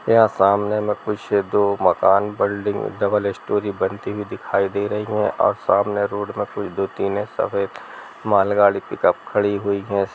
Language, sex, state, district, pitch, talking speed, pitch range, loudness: Hindi, male, Bihar, Sitamarhi, 100 Hz, 165 wpm, 100-105 Hz, -20 LUFS